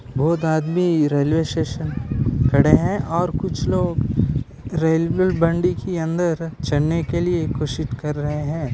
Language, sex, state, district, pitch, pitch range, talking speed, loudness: Hindi, male, Maharashtra, Dhule, 160 Hz, 145-170 Hz, 130 wpm, -20 LUFS